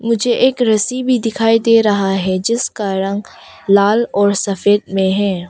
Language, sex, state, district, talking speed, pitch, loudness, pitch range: Hindi, female, Arunachal Pradesh, Longding, 165 wpm, 210 Hz, -15 LUFS, 195-230 Hz